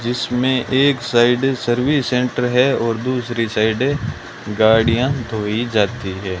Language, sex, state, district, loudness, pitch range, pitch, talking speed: Hindi, male, Rajasthan, Bikaner, -17 LUFS, 110-125 Hz, 120 Hz, 120 wpm